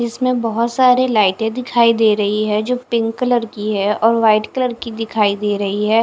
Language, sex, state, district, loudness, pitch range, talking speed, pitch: Hindi, female, Punjab, Fazilka, -16 LUFS, 210-240 Hz, 210 wpm, 225 Hz